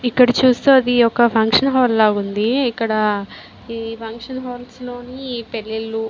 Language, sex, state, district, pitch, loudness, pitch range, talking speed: Telugu, female, Andhra Pradesh, Visakhapatnam, 235 Hz, -17 LUFS, 225-250 Hz, 150 wpm